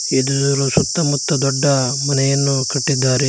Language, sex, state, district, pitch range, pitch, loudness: Kannada, male, Karnataka, Koppal, 135-140 Hz, 140 Hz, -16 LUFS